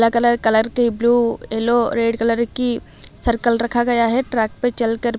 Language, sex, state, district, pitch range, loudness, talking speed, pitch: Hindi, female, Odisha, Malkangiri, 230-240 Hz, -12 LUFS, 175 wpm, 235 Hz